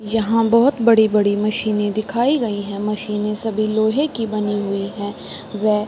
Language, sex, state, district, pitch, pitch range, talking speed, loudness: Hindi, female, Uttar Pradesh, Varanasi, 215 Hz, 205-225 Hz, 165 wpm, -19 LUFS